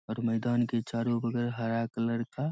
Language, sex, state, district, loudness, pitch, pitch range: Hindi, male, Bihar, Saharsa, -31 LUFS, 115 Hz, 115-120 Hz